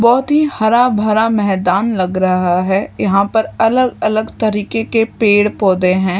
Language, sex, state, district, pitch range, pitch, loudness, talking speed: Hindi, female, Maharashtra, Mumbai Suburban, 190-225 Hz, 215 Hz, -14 LUFS, 145 wpm